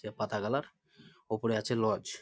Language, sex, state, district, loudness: Bengali, male, West Bengal, Malda, -33 LUFS